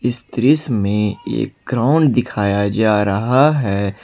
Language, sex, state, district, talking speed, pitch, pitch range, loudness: Hindi, male, Jharkhand, Ranchi, 135 wpm, 115 Hz, 100-125 Hz, -17 LUFS